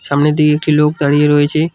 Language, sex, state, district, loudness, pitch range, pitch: Bengali, male, West Bengal, Cooch Behar, -12 LUFS, 145-150 Hz, 150 Hz